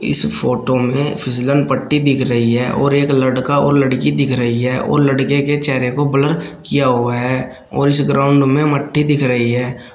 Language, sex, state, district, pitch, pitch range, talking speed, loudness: Hindi, male, Uttar Pradesh, Shamli, 135 Hz, 125-145 Hz, 200 wpm, -15 LUFS